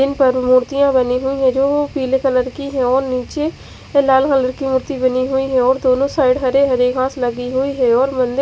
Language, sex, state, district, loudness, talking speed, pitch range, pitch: Hindi, female, Odisha, Khordha, -16 LUFS, 220 wpm, 255-275 Hz, 260 Hz